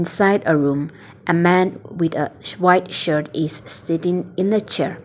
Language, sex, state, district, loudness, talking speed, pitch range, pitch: English, female, Nagaland, Dimapur, -19 LUFS, 165 wpm, 150-180 Hz, 165 Hz